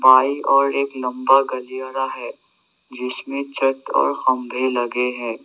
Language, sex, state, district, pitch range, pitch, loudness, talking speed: Hindi, male, Assam, Sonitpur, 125-135 Hz, 130 Hz, -20 LUFS, 120 wpm